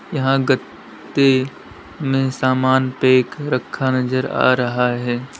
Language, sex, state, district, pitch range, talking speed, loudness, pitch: Hindi, male, Uttar Pradesh, Lalitpur, 130-135 Hz, 110 wpm, -18 LUFS, 130 Hz